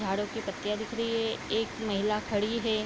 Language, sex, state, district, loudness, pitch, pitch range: Hindi, female, Bihar, Vaishali, -31 LUFS, 215 Hz, 205-225 Hz